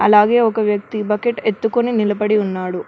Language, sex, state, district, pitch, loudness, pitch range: Telugu, female, Telangana, Mahabubabad, 215 Hz, -17 LUFS, 210-225 Hz